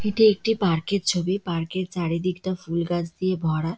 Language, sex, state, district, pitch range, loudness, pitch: Bengali, female, West Bengal, Dakshin Dinajpur, 170-195 Hz, -24 LUFS, 180 Hz